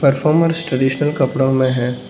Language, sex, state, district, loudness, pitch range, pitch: Hindi, male, Arunachal Pradesh, Lower Dibang Valley, -16 LUFS, 130-155 Hz, 135 Hz